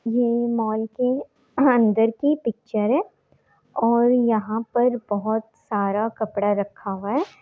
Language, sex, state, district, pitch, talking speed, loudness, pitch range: Hindi, female, Bihar, Darbhanga, 230 Hz, 130 wpm, -22 LUFS, 215-245 Hz